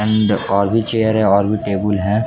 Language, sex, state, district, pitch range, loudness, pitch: Hindi, male, Jharkhand, Jamtara, 100-110 Hz, -16 LUFS, 105 Hz